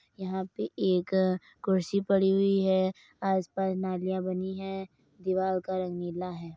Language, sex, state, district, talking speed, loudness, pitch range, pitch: Hindi, female, Uttar Pradesh, Muzaffarnagar, 145 wpm, -30 LUFS, 185-190 Hz, 190 Hz